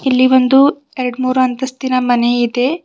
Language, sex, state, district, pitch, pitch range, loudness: Kannada, female, Karnataka, Bidar, 255 Hz, 250-265 Hz, -14 LUFS